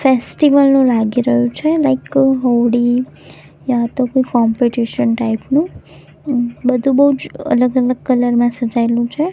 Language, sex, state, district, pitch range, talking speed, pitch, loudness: Gujarati, female, Gujarat, Gandhinagar, 235-270 Hz, 135 wpm, 250 Hz, -15 LUFS